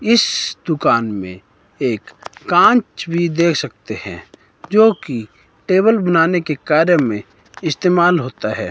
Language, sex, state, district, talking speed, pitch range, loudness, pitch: Hindi, male, Himachal Pradesh, Shimla, 125 wpm, 110-180 Hz, -16 LUFS, 160 Hz